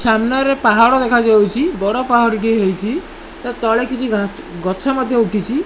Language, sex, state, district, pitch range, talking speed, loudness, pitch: Odia, male, Odisha, Malkangiri, 215-255 Hz, 140 wpm, -15 LUFS, 230 Hz